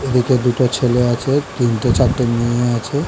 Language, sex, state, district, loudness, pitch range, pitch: Bengali, male, West Bengal, Dakshin Dinajpur, -16 LUFS, 120-130 Hz, 125 Hz